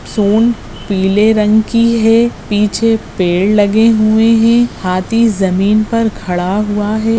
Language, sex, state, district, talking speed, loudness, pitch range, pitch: Hindi, female, Goa, North and South Goa, 135 wpm, -12 LUFS, 205-225 Hz, 215 Hz